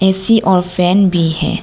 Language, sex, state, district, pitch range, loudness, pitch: Hindi, female, Arunachal Pradesh, Lower Dibang Valley, 180-190 Hz, -13 LUFS, 185 Hz